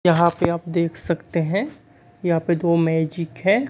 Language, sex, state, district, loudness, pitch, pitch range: Hindi, male, Bihar, Kaimur, -21 LUFS, 170 Hz, 165-175 Hz